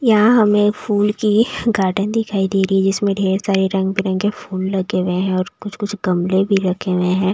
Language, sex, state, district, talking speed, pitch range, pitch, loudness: Hindi, female, Maharashtra, Mumbai Suburban, 210 wpm, 190-210 Hz, 195 Hz, -17 LUFS